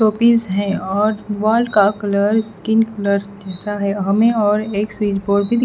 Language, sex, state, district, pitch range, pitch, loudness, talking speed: Hindi, female, Haryana, Rohtak, 200-220 Hz, 205 Hz, -17 LUFS, 180 wpm